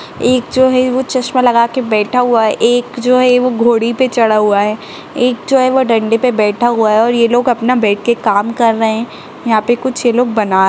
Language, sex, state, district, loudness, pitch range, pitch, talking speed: Kumaoni, female, Uttarakhand, Tehri Garhwal, -12 LUFS, 225-250 Hz, 240 Hz, 255 wpm